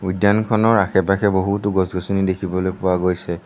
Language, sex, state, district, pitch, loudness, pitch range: Assamese, male, Assam, Sonitpur, 95 Hz, -19 LUFS, 90-100 Hz